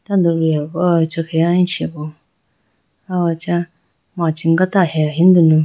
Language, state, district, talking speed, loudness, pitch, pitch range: Idu Mishmi, Arunachal Pradesh, Lower Dibang Valley, 150 wpm, -16 LUFS, 165 Hz, 160-180 Hz